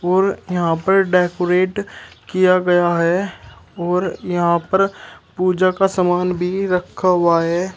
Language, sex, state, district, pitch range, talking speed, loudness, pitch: Hindi, male, Uttar Pradesh, Shamli, 175-185 Hz, 130 wpm, -17 LUFS, 180 Hz